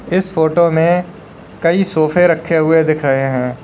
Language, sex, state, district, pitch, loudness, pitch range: Hindi, male, Uttar Pradesh, Lalitpur, 165 Hz, -14 LUFS, 155-175 Hz